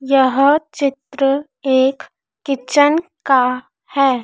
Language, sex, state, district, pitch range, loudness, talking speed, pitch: Hindi, female, Madhya Pradesh, Dhar, 265-290 Hz, -16 LUFS, 85 wpm, 275 Hz